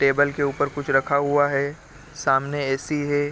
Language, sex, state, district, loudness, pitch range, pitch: Hindi, male, Bihar, Gopalganj, -22 LUFS, 140-145 Hz, 145 Hz